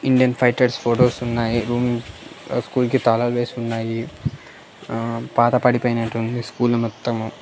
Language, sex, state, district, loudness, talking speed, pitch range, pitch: Telugu, male, Andhra Pradesh, Annamaya, -21 LUFS, 120 wpm, 115-125 Hz, 120 Hz